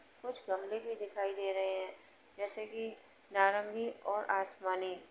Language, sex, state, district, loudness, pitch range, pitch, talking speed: Hindi, female, Uttar Pradesh, Jalaun, -37 LUFS, 190-220 Hz, 200 Hz, 140 wpm